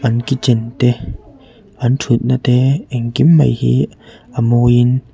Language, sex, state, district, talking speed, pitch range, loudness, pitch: Mizo, male, Mizoram, Aizawl, 150 wpm, 120-130 Hz, -14 LUFS, 125 Hz